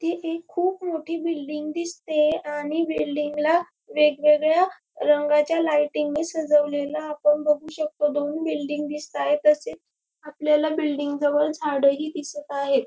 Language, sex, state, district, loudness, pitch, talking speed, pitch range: Marathi, female, Maharashtra, Dhule, -23 LUFS, 300 Hz, 130 wpm, 295-320 Hz